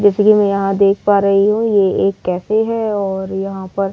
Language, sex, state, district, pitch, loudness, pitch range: Hindi, female, Delhi, New Delhi, 200 Hz, -15 LUFS, 195-205 Hz